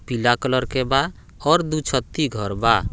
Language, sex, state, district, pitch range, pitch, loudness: Bhojpuri, male, Bihar, Muzaffarpur, 110-140 Hz, 130 Hz, -21 LUFS